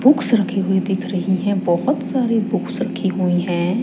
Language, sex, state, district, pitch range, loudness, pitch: Hindi, female, Chandigarh, Chandigarh, 190-235 Hz, -19 LUFS, 195 Hz